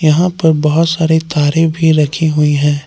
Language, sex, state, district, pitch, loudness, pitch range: Hindi, male, Jharkhand, Palamu, 160 Hz, -12 LUFS, 150-165 Hz